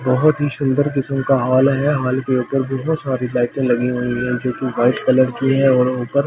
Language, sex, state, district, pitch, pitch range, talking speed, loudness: Hindi, male, Delhi, New Delhi, 130 Hz, 125-135 Hz, 250 wpm, -17 LUFS